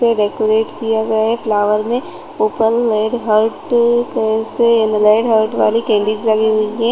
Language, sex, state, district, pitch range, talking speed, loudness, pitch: Hindi, female, Chhattisgarh, Rajnandgaon, 215-230 Hz, 155 wpm, -15 LUFS, 220 Hz